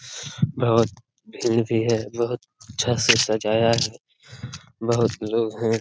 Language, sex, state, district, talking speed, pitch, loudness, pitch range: Hindi, male, Bihar, Jamui, 125 wpm, 115 Hz, -22 LUFS, 115-120 Hz